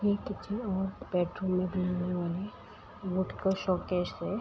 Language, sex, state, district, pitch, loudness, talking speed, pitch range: Hindi, female, Uttar Pradesh, Etah, 185 Hz, -33 LUFS, 95 wpm, 180-200 Hz